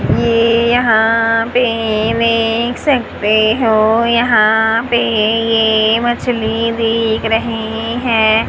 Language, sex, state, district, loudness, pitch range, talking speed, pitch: Hindi, female, Haryana, Rohtak, -13 LUFS, 220-235 Hz, 90 wpm, 225 Hz